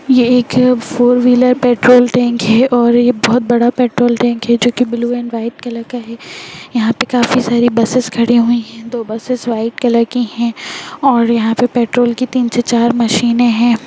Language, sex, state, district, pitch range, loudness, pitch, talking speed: Hindi, female, Bihar, Jahanabad, 235-245 Hz, -13 LUFS, 240 Hz, 200 wpm